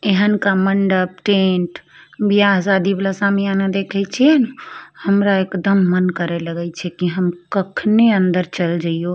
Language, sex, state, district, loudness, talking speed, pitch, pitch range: Maithili, female, Bihar, Begusarai, -17 LUFS, 130 wpm, 195 Hz, 180-200 Hz